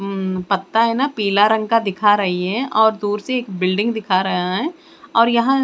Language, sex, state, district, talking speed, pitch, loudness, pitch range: Hindi, female, Chandigarh, Chandigarh, 200 wpm, 215 Hz, -18 LUFS, 195-235 Hz